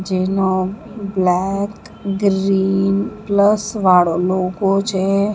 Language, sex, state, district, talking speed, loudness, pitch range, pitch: Gujarati, female, Maharashtra, Mumbai Suburban, 80 wpm, -17 LUFS, 185-205 Hz, 195 Hz